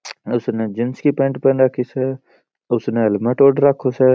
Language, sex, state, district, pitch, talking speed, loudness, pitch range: Marwari, male, Rajasthan, Churu, 130 Hz, 175 wpm, -18 LUFS, 120-135 Hz